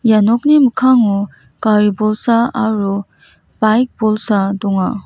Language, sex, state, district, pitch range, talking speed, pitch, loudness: Garo, female, Meghalaya, West Garo Hills, 200-235 Hz, 105 wpm, 215 Hz, -14 LUFS